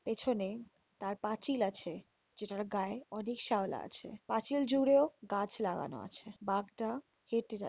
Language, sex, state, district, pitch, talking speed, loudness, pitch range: Bengali, female, West Bengal, Kolkata, 215 Hz, 135 wpm, -36 LUFS, 200-235 Hz